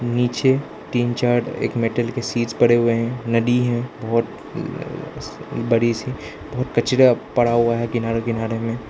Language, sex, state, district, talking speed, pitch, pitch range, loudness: Hindi, male, Arunachal Pradesh, Lower Dibang Valley, 160 wpm, 120 Hz, 115-120 Hz, -20 LUFS